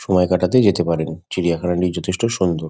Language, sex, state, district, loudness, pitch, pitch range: Bengali, male, West Bengal, Kolkata, -19 LUFS, 90 Hz, 85-95 Hz